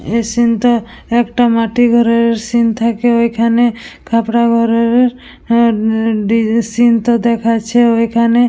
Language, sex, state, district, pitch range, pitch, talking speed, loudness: Bengali, female, West Bengal, Purulia, 230-235 Hz, 230 Hz, 105 wpm, -13 LUFS